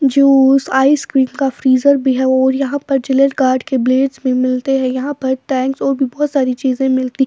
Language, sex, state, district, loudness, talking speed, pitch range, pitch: Hindi, female, Bihar, Patna, -14 LUFS, 215 wpm, 260-275 Hz, 265 Hz